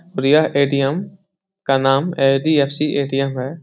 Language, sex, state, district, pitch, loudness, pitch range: Hindi, male, Bihar, Supaul, 140 Hz, -17 LUFS, 135-170 Hz